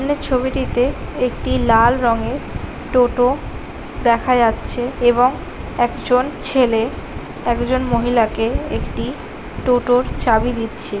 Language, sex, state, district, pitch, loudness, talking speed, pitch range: Bengali, male, West Bengal, Paschim Medinipur, 245 Hz, -18 LUFS, 105 wpm, 235-255 Hz